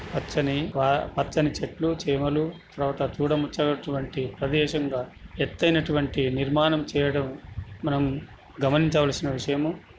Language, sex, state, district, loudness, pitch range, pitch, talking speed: Telugu, male, Telangana, Nalgonda, -26 LUFS, 135-150 Hz, 145 Hz, 110 wpm